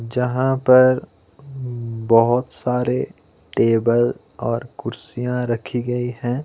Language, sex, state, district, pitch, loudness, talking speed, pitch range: Hindi, male, Himachal Pradesh, Shimla, 125 Hz, -20 LUFS, 110 wpm, 115-125 Hz